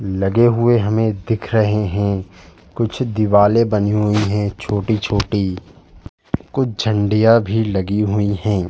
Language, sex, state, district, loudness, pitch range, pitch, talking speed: Hindi, male, Uttar Pradesh, Jalaun, -17 LUFS, 100-110 Hz, 105 Hz, 125 wpm